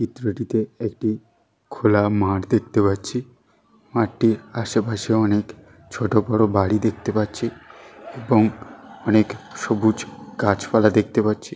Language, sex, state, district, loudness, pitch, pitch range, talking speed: Bengali, male, West Bengal, Jalpaiguri, -21 LUFS, 110 Hz, 105-115 Hz, 110 wpm